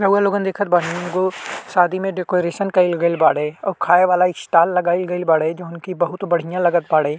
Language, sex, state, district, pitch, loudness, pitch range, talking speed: Bhojpuri, male, Uttar Pradesh, Ghazipur, 180 Hz, -18 LUFS, 170-185 Hz, 200 wpm